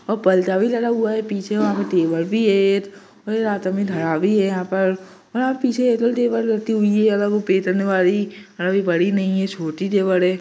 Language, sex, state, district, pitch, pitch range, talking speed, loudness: Hindi, male, Bihar, Vaishali, 195 Hz, 185-215 Hz, 180 wpm, -19 LUFS